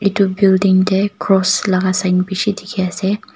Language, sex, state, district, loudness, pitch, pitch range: Nagamese, female, Nagaland, Kohima, -15 LUFS, 190 Hz, 185-200 Hz